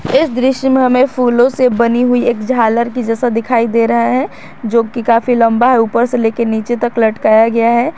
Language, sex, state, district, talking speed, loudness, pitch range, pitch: Hindi, female, Jharkhand, Garhwa, 220 wpm, -12 LUFS, 230-250 Hz, 240 Hz